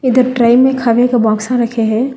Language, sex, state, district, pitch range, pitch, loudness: Hindi, female, Telangana, Hyderabad, 230-255 Hz, 240 Hz, -12 LUFS